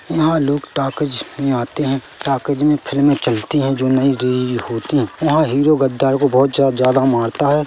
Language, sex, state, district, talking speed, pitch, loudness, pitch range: Hindi, male, Chhattisgarh, Bilaspur, 195 wpm, 135 Hz, -16 LUFS, 130-145 Hz